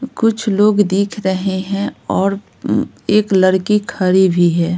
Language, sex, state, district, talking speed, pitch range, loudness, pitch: Hindi, female, Bihar, Patna, 150 wpm, 185-210 Hz, -15 LUFS, 195 Hz